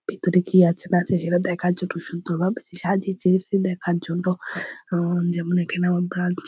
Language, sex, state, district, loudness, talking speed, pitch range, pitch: Bengali, female, West Bengal, Purulia, -22 LUFS, 155 wpm, 175-185 Hz, 180 Hz